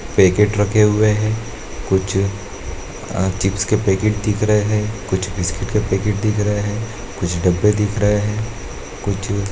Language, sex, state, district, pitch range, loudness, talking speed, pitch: Hindi, male, Bihar, Purnia, 95-105 Hz, -18 LUFS, 165 wpm, 105 Hz